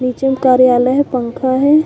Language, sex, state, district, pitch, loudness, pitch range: Chhattisgarhi, female, Chhattisgarh, Korba, 260 Hz, -13 LUFS, 255-270 Hz